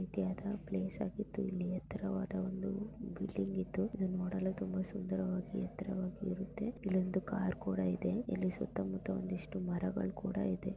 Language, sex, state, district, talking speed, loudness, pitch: Kannada, female, Karnataka, Mysore, 135 wpm, -39 LUFS, 190 Hz